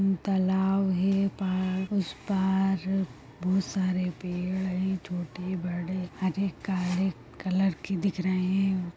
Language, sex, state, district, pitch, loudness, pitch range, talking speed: Hindi, female, Chhattisgarh, Sukma, 185 Hz, -29 LUFS, 180-195 Hz, 135 wpm